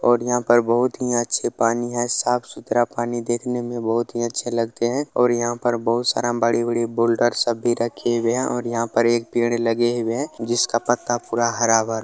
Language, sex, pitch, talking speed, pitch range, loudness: Maithili, male, 120 Hz, 210 wpm, 115-120 Hz, -21 LUFS